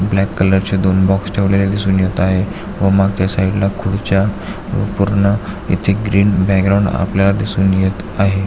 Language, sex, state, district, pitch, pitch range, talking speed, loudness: Marathi, male, Maharashtra, Aurangabad, 100 Hz, 95-100 Hz, 155 wpm, -15 LUFS